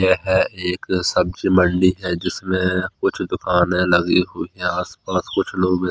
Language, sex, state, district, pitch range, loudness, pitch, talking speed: Hindi, male, Chandigarh, Chandigarh, 90-95 Hz, -19 LUFS, 90 Hz, 160 wpm